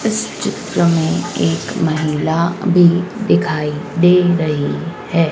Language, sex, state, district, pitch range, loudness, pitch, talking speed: Hindi, female, Madhya Pradesh, Dhar, 150-175 Hz, -16 LUFS, 165 Hz, 110 wpm